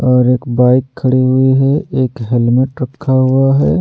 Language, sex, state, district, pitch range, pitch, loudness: Hindi, male, Delhi, New Delhi, 125-130 Hz, 130 Hz, -13 LUFS